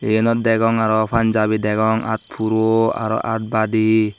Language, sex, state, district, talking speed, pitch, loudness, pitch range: Chakma, male, Tripura, Dhalai, 145 wpm, 110 Hz, -18 LUFS, 110-115 Hz